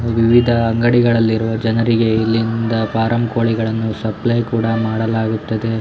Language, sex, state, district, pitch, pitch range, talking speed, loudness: Kannada, male, Karnataka, Shimoga, 115 Hz, 110-115 Hz, 105 wpm, -16 LUFS